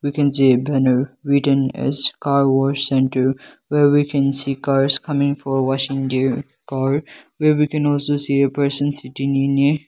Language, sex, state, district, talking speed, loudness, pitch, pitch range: English, male, Nagaland, Kohima, 190 wpm, -18 LUFS, 140 Hz, 135-145 Hz